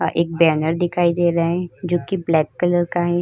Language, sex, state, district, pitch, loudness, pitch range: Hindi, female, Uttar Pradesh, Hamirpur, 175 Hz, -19 LUFS, 165-175 Hz